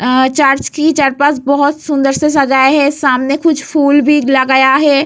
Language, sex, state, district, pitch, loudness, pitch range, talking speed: Hindi, female, Bihar, Vaishali, 280 Hz, -11 LUFS, 270-295 Hz, 165 wpm